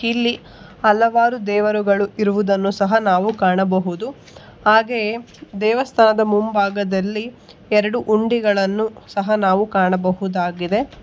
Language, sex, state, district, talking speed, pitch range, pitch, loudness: Kannada, female, Karnataka, Bangalore, 80 wpm, 195-220 Hz, 210 Hz, -18 LUFS